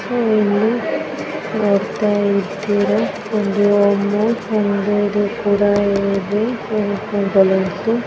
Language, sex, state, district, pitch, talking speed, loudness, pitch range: Kannada, female, Karnataka, Bellary, 205 Hz, 75 wpm, -17 LUFS, 200-215 Hz